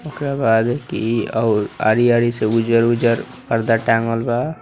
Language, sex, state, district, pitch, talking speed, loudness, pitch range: Hindi, male, Bihar, East Champaran, 115 Hz, 130 wpm, -18 LUFS, 115-120 Hz